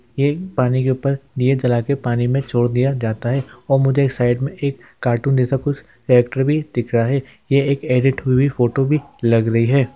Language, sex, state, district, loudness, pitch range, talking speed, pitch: Hindi, male, Uttar Pradesh, Hamirpur, -18 LUFS, 120-140 Hz, 225 wpm, 130 Hz